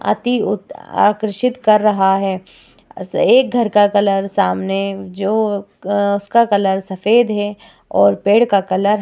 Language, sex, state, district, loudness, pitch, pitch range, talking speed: Hindi, female, Bihar, Vaishali, -16 LUFS, 205 Hz, 195-220 Hz, 145 wpm